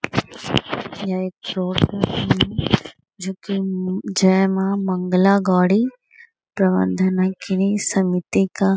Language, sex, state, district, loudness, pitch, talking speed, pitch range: Hindi, female, Bihar, Gaya, -20 LUFS, 190 Hz, 110 wpm, 185-195 Hz